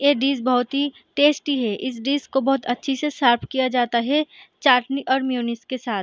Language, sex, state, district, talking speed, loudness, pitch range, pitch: Hindi, female, Bihar, Saharsa, 220 wpm, -21 LUFS, 245-280 Hz, 265 Hz